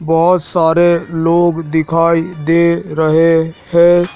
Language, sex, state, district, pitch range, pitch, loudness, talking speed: Hindi, male, Madhya Pradesh, Dhar, 160-170 Hz, 165 Hz, -13 LUFS, 100 wpm